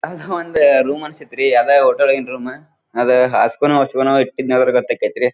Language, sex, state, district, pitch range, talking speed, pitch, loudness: Kannada, male, Karnataka, Dharwad, 130-155 Hz, 190 wpm, 135 Hz, -15 LUFS